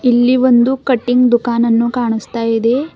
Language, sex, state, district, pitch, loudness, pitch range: Kannada, female, Karnataka, Bidar, 240 Hz, -13 LUFS, 235-250 Hz